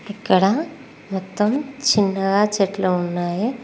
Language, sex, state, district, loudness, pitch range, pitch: Telugu, female, Telangana, Mahabubabad, -20 LUFS, 190-230 Hz, 200 Hz